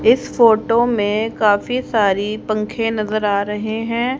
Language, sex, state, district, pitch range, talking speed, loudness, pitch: Hindi, female, Haryana, Rohtak, 210-235 Hz, 145 wpm, -17 LUFS, 220 Hz